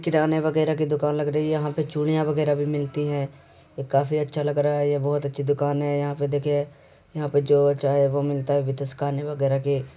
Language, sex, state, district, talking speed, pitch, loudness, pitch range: Hindi, male, Uttar Pradesh, Muzaffarnagar, 225 wpm, 145 Hz, -24 LUFS, 140-150 Hz